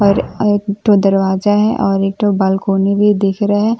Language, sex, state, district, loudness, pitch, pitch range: Hindi, female, Bihar, Katihar, -14 LUFS, 200 Hz, 195-205 Hz